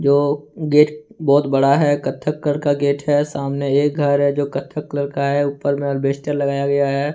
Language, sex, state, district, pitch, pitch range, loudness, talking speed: Hindi, male, Jharkhand, Ranchi, 140 Hz, 140-145 Hz, -18 LUFS, 210 wpm